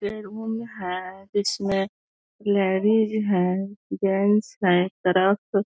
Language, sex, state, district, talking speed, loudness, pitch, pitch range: Hindi, female, Bihar, East Champaran, 95 wpm, -24 LUFS, 200 Hz, 190-210 Hz